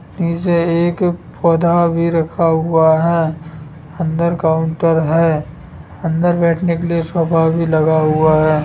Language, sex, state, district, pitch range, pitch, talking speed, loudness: Hindi, male, Bihar, Sitamarhi, 160-170 Hz, 165 Hz, 130 wpm, -15 LUFS